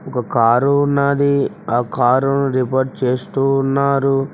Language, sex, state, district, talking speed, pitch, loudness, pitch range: Telugu, male, Telangana, Mahabubabad, 110 wpm, 135 Hz, -17 LUFS, 125-140 Hz